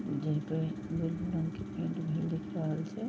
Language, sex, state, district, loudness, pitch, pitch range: Maithili, female, Bihar, Vaishali, -35 LUFS, 165 Hz, 160-170 Hz